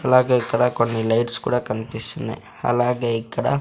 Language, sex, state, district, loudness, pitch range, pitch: Telugu, male, Andhra Pradesh, Sri Satya Sai, -22 LUFS, 115-125 Hz, 120 Hz